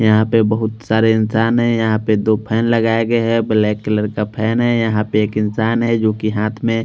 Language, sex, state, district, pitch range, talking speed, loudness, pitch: Hindi, male, Chandigarh, Chandigarh, 110-115 Hz, 245 wpm, -16 LUFS, 110 Hz